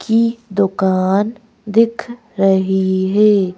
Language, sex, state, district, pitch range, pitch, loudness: Hindi, female, Madhya Pradesh, Bhopal, 190-230 Hz, 205 Hz, -16 LUFS